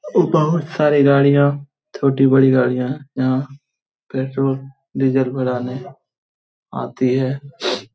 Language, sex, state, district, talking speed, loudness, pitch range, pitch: Hindi, male, Jharkhand, Jamtara, 75 wpm, -18 LUFS, 130-140 Hz, 135 Hz